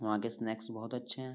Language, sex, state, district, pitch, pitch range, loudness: Hindi, male, Uttar Pradesh, Jyotiba Phule Nagar, 115 Hz, 110-125 Hz, -38 LUFS